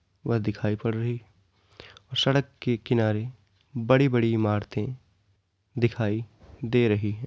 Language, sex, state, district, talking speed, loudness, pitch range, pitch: Hindi, male, Uttar Pradesh, Varanasi, 125 wpm, -26 LUFS, 100-120 Hz, 110 Hz